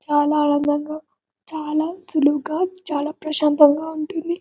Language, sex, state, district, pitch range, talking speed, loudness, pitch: Telugu, male, Telangana, Karimnagar, 295-320 Hz, 95 wpm, -20 LUFS, 305 Hz